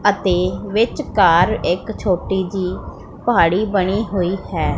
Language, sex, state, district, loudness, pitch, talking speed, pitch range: Punjabi, female, Punjab, Pathankot, -18 LUFS, 190 Hz, 115 wpm, 185-205 Hz